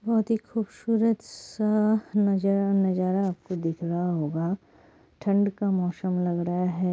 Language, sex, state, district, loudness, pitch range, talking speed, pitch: Hindi, female, West Bengal, Jalpaiguri, -26 LUFS, 180-215 Hz, 140 wpm, 195 Hz